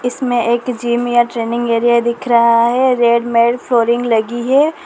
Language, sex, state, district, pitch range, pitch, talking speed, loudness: Hindi, female, Uttar Pradesh, Lalitpur, 235-245 Hz, 240 Hz, 175 wpm, -14 LUFS